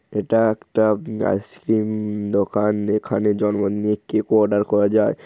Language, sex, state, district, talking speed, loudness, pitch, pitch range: Bengali, male, West Bengal, Paschim Medinipur, 150 wpm, -20 LUFS, 105 Hz, 105-110 Hz